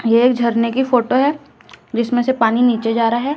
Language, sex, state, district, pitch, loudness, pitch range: Hindi, female, Chhattisgarh, Raipur, 240 Hz, -16 LUFS, 230-255 Hz